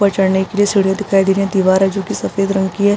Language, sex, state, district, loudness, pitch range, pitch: Hindi, female, Bihar, East Champaran, -15 LUFS, 190-200 Hz, 195 Hz